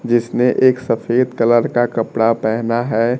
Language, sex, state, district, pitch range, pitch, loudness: Hindi, male, Bihar, Kaimur, 115-125 Hz, 120 Hz, -16 LUFS